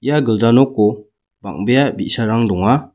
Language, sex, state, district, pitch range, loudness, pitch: Garo, male, Meghalaya, West Garo Hills, 105-130 Hz, -15 LUFS, 115 Hz